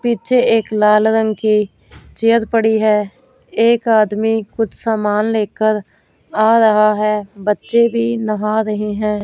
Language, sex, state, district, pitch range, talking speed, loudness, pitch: Hindi, female, Punjab, Fazilka, 210-225 Hz, 135 wpm, -15 LUFS, 220 Hz